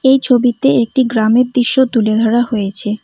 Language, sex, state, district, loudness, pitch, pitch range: Bengali, female, West Bengal, Cooch Behar, -13 LUFS, 240 Hz, 225-255 Hz